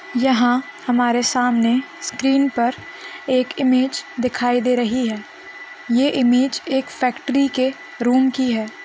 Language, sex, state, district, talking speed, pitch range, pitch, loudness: Hindi, female, Bihar, Gaya, 130 wpm, 245-265 Hz, 255 Hz, -19 LUFS